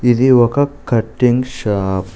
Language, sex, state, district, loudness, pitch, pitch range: Telugu, male, Telangana, Mahabubabad, -15 LUFS, 120 Hz, 105-130 Hz